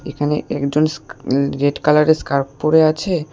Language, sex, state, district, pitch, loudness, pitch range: Bengali, male, West Bengal, Alipurduar, 150 Hz, -17 LUFS, 140-155 Hz